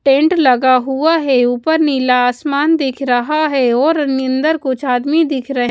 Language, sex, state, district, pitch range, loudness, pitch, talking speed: Hindi, female, Bihar, West Champaran, 255-305 Hz, -14 LUFS, 270 Hz, 170 wpm